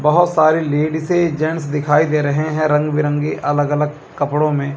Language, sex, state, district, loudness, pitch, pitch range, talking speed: Hindi, male, Chandigarh, Chandigarh, -17 LUFS, 150 Hz, 145-155 Hz, 175 wpm